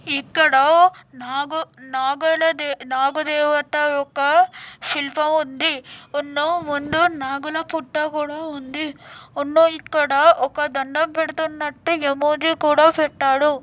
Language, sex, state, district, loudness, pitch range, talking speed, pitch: Telugu, female, Telangana, Nalgonda, -19 LUFS, 280-320 Hz, 80 wpm, 300 Hz